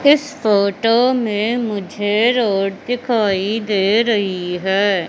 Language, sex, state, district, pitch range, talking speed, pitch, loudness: Hindi, female, Madhya Pradesh, Katni, 195-235 Hz, 105 wpm, 210 Hz, -17 LUFS